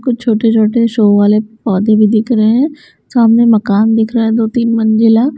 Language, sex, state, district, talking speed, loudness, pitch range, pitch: Hindi, female, Bihar, Patna, 180 wpm, -11 LUFS, 215-235 Hz, 225 Hz